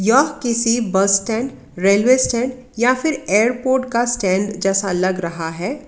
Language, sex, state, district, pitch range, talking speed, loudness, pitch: Hindi, female, Karnataka, Bangalore, 195-250 Hz, 155 wpm, -18 LUFS, 230 Hz